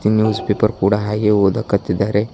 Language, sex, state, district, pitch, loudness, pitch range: Kannada, male, Karnataka, Bidar, 105 Hz, -17 LUFS, 100-110 Hz